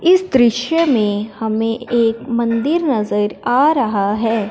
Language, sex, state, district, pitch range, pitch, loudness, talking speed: Hindi, male, Punjab, Fazilka, 220-275 Hz, 230 Hz, -16 LUFS, 135 wpm